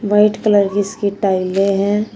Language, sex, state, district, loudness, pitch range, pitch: Hindi, female, Uttar Pradesh, Shamli, -16 LUFS, 195-210 Hz, 205 Hz